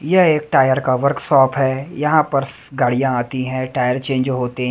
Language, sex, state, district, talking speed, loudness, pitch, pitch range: Hindi, male, Delhi, New Delhi, 190 wpm, -17 LUFS, 135 Hz, 130-140 Hz